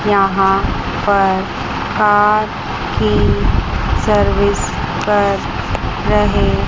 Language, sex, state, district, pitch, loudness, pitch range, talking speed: Hindi, female, Chandigarh, Chandigarh, 200 Hz, -15 LUFS, 195-210 Hz, 70 wpm